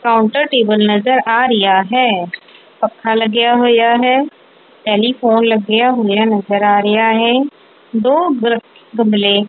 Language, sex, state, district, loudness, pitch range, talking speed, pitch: Punjabi, female, Punjab, Kapurthala, -13 LUFS, 210-240 Hz, 125 wpm, 225 Hz